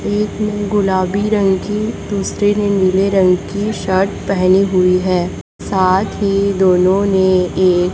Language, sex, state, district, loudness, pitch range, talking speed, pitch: Hindi, female, Chhattisgarh, Raipur, -15 LUFS, 185-205 Hz, 135 wpm, 195 Hz